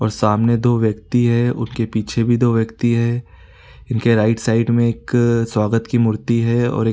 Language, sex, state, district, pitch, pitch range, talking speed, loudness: Sadri, male, Chhattisgarh, Jashpur, 115 Hz, 110-120 Hz, 200 wpm, -17 LUFS